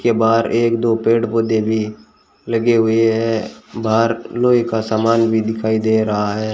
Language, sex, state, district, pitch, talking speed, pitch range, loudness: Hindi, male, Rajasthan, Bikaner, 115 Hz, 175 wpm, 110-115 Hz, -17 LUFS